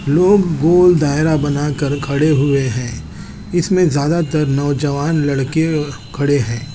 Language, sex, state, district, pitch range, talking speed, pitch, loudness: Hindi, male, Chandigarh, Chandigarh, 140-160 Hz, 140 wpm, 145 Hz, -15 LUFS